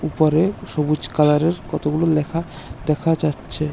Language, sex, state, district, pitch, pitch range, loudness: Bengali, male, Tripura, West Tripura, 155 Hz, 150-165 Hz, -19 LUFS